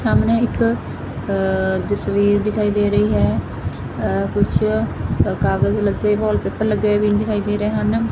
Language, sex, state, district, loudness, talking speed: Punjabi, female, Punjab, Fazilka, -19 LUFS, 150 wpm